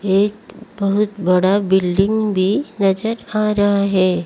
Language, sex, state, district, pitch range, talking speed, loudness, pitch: Hindi, female, Odisha, Malkangiri, 190-210 Hz, 125 wpm, -17 LUFS, 200 Hz